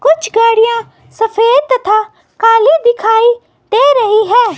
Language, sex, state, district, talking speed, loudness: Hindi, female, Himachal Pradesh, Shimla, 120 wpm, -10 LUFS